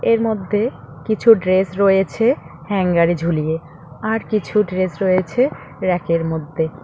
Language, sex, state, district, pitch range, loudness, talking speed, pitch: Bengali, female, West Bengal, Cooch Behar, 165-215 Hz, -18 LUFS, 130 wpm, 185 Hz